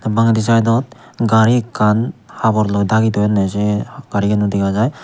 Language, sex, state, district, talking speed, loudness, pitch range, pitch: Chakma, male, Tripura, Unakoti, 130 wpm, -16 LUFS, 105-115 Hz, 110 Hz